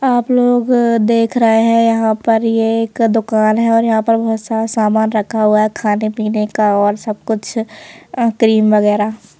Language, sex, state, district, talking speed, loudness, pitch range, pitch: Hindi, female, Madhya Pradesh, Bhopal, 170 wpm, -14 LUFS, 215-230 Hz, 225 Hz